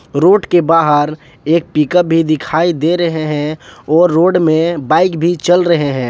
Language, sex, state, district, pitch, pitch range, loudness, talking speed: Hindi, male, Jharkhand, Palamu, 165 Hz, 150-175 Hz, -13 LUFS, 175 wpm